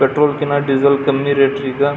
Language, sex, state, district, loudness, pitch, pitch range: Kannada, male, Karnataka, Belgaum, -15 LUFS, 140 Hz, 135-145 Hz